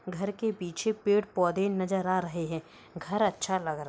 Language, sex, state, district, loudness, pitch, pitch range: Hindi, female, Uttar Pradesh, Hamirpur, -30 LUFS, 185 Hz, 175-205 Hz